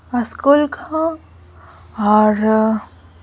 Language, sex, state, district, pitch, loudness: Hindi, female, Bihar, Patna, 215 Hz, -16 LUFS